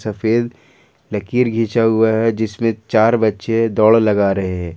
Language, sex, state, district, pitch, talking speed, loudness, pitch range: Hindi, male, Jharkhand, Ranchi, 110 Hz, 150 wpm, -16 LUFS, 105-115 Hz